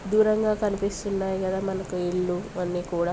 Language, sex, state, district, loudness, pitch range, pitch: Telugu, female, Telangana, Nalgonda, -26 LUFS, 180-205 Hz, 190 Hz